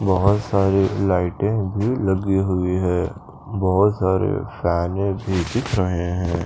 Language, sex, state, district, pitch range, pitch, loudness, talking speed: Hindi, male, Chandigarh, Chandigarh, 90-100 Hz, 95 Hz, -21 LUFS, 130 wpm